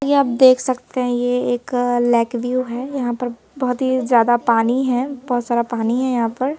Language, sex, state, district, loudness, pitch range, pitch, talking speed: Hindi, female, Madhya Pradesh, Bhopal, -18 LUFS, 240-260 Hz, 245 Hz, 210 wpm